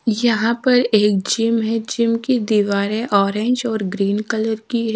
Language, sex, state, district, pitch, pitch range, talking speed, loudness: Hindi, female, Odisha, Sambalpur, 225 Hz, 210-235 Hz, 155 wpm, -18 LUFS